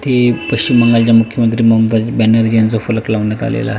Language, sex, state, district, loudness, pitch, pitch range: Marathi, male, Maharashtra, Pune, -12 LUFS, 115 Hz, 110-120 Hz